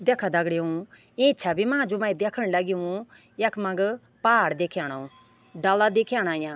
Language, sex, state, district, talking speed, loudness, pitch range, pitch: Garhwali, female, Uttarakhand, Tehri Garhwal, 135 wpm, -25 LUFS, 170-225 Hz, 190 Hz